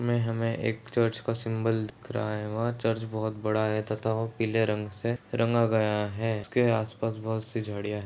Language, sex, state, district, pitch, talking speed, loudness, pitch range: Hindi, male, Bihar, Saharsa, 110 Hz, 215 wpm, -29 LUFS, 110-115 Hz